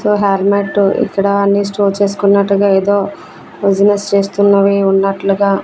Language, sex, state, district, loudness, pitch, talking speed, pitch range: Telugu, female, Andhra Pradesh, Manyam, -12 LUFS, 200 Hz, 105 wpm, 195-200 Hz